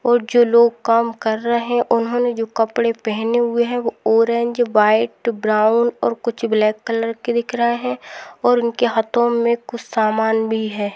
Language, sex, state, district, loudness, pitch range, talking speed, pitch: Hindi, female, Rajasthan, Nagaur, -18 LUFS, 220-235 Hz, 180 wpm, 235 Hz